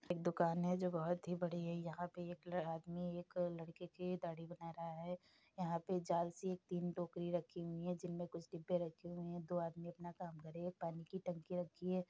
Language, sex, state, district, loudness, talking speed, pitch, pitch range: Hindi, female, Uttar Pradesh, Deoria, -45 LUFS, 240 wpm, 175 Hz, 170-180 Hz